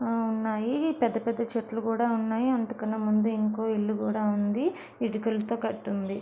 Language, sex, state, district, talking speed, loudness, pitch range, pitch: Telugu, female, Andhra Pradesh, Visakhapatnam, 155 wpm, -28 LUFS, 215-230 Hz, 225 Hz